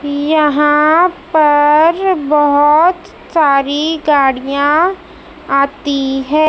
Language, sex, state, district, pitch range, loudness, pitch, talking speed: Hindi, female, Madhya Pradesh, Dhar, 285-325 Hz, -12 LUFS, 295 Hz, 65 wpm